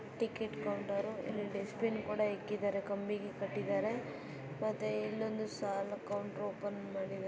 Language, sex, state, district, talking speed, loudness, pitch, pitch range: Kannada, female, Karnataka, Bijapur, 115 wpm, -39 LUFS, 205 Hz, 200-210 Hz